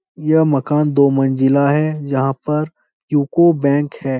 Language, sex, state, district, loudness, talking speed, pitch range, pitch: Hindi, male, Bihar, Supaul, -16 LUFS, 145 wpm, 135-155 Hz, 145 Hz